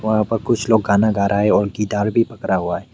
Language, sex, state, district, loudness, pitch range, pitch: Hindi, male, Meghalaya, West Garo Hills, -18 LUFS, 105-110 Hz, 105 Hz